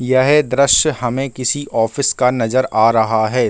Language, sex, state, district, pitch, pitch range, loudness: Hindi, male, Bihar, Gaya, 130 Hz, 115-140 Hz, -15 LUFS